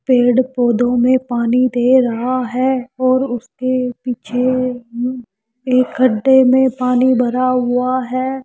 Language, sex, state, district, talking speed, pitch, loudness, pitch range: Hindi, female, Rajasthan, Jaipur, 120 wpm, 255 Hz, -15 LUFS, 245-255 Hz